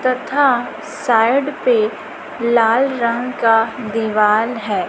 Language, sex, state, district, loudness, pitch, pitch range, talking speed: Hindi, female, Chhattisgarh, Raipur, -16 LUFS, 235 Hz, 225-265 Hz, 100 wpm